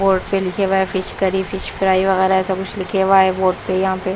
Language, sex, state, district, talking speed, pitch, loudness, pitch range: Hindi, female, Punjab, Pathankot, 260 wpm, 190 Hz, -18 LUFS, 190-195 Hz